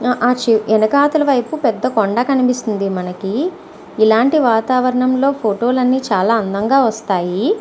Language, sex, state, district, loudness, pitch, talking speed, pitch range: Telugu, female, Andhra Pradesh, Visakhapatnam, -15 LUFS, 245 Hz, 125 wpm, 215-270 Hz